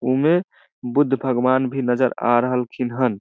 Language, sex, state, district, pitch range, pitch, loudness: Maithili, male, Bihar, Samastipur, 125-135 Hz, 130 Hz, -20 LUFS